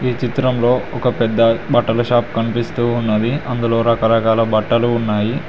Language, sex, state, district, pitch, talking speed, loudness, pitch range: Telugu, male, Telangana, Mahabubabad, 120 Hz, 120 wpm, -16 LUFS, 115-125 Hz